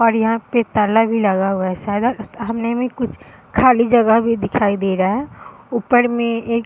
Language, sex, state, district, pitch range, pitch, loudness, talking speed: Hindi, female, Bihar, Madhepura, 205-235 Hz, 230 Hz, -17 LUFS, 205 wpm